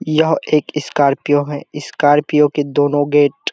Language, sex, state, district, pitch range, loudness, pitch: Hindi, male, Bihar, Kishanganj, 145-150 Hz, -15 LUFS, 145 Hz